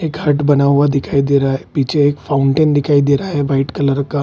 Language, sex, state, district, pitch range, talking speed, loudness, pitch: Hindi, male, Bihar, Kishanganj, 140-145 Hz, 270 wpm, -14 LUFS, 140 Hz